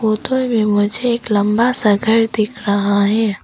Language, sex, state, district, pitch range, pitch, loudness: Hindi, female, Arunachal Pradesh, Papum Pare, 205-235 Hz, 215 Hz, -15 LUFS